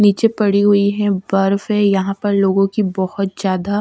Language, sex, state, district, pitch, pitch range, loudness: Hindi, female, Punjab, Kapurthala, 200 Hz, 195-205 Hz, -16 LUFS